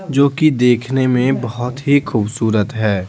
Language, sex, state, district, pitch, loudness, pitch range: Hindi, male, Bihar, Patna, 125 Hz, -16 LUFS, 110-140 Hz